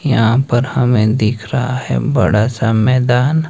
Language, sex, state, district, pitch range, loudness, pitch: Hindi, male, Himachal Pradesh, Shimla, 115-130 Hz, -14 LUFS, 125 Hz